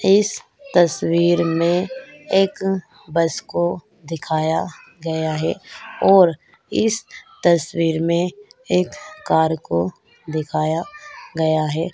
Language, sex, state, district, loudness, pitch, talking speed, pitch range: Hindi, female, Karnataka, Dakshina Kannada, -20 LUFS, 170 Hz, 95 wpm, 160-195 Hz